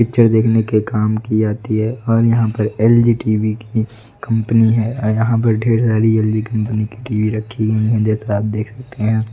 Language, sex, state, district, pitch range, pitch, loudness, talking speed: Hindi, male, Odisha, Nuapada, 110-115 Hz, 110 Hz, -16 LUFS, 200 wpm